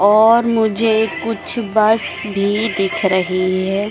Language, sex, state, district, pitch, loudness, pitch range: Hindi, female, Madhya Pradesh, Dhar, 215 Hz, -16 LUFS, 195-225 Hz